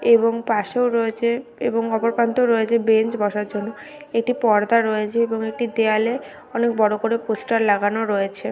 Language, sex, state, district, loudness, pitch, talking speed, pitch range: Bengali, female, West Bengal, Dakshin Dinajpur, -20 LUFS, 225 Hz, 155 wpm, 215-235 Hz